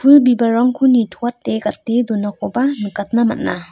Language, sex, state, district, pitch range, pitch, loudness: Garo, female, Meghalaya, North Garo Hills, 210-250 Hz, 235 Hz, -16 LUFS